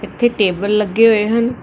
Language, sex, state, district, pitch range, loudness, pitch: Punjabi, female, Karnataka, Bangalore, 210-230 Hz, -15 LUFS, 215 Hz